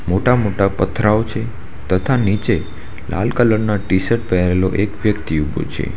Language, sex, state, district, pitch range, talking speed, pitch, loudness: Gujarati, male, Gujarat, Valsad, 95-110 Hz, 160 wpm, 105 Hz, -17 LUFS